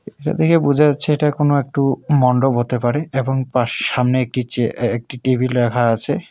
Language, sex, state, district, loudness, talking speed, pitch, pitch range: Bengali, male, West Bengal, Alipurduar, -17 LUFS, 190 wpm, 130 Hz, 125-145 Hz